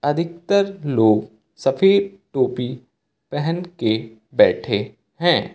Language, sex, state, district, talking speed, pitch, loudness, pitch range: Hindi, male, Uttar Pradesh, Lucknow, 75 wpm, 140 Hz, -20 LUFS, 115-175 Hz